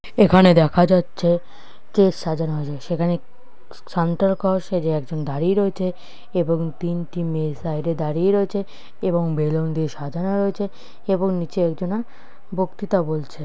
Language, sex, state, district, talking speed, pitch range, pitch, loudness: Bengali, female, West Bengal, North 24 Parganas, 130 wpm, 160-195 Hz, 175 Hz, -21 LUFS